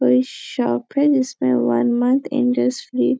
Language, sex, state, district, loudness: Hindi, female, Chhattisgarh, Bastar, -19 LUFS